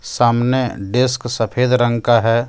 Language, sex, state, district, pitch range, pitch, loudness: Hindi, male, Jharkhand, Deoghar, 115-125 Hz, 120 Hz, -17 LUFS